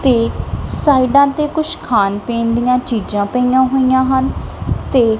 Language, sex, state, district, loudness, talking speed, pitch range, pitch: Punjabi, female, Punjab, Kapurthala, -15 LUFS, 140 wpm, 230-265 Hz, 250 Hz